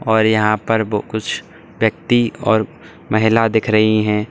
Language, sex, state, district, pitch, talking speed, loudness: Hindi, male, Uttar Pradesh, Saharanpur, 110 Hz, 140 wpm, -17 LUFS